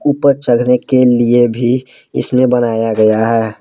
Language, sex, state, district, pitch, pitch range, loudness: Hindi, male, Jharkhand, Palamu, 120 Hz, 115-125 Hz, -12 LUFS